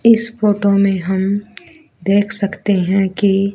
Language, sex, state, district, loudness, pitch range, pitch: Hindi, female, Haryana, Rohtak, -16 LUFS, 195-210 Hz, 200 Hz